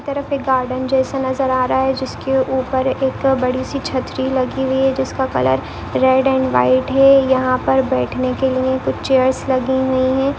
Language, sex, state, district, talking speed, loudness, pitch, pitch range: Hindi, female, Maharashtra, Pune, 190 wpm, -17 LUFS, 260 Hz, 255-265 Hz